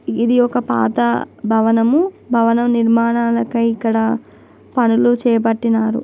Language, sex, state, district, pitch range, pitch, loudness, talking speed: Telugu, female, Telangana, Nalgonda, 225-240 Hz, 230 Hz, -16 LUFS, 100 wpm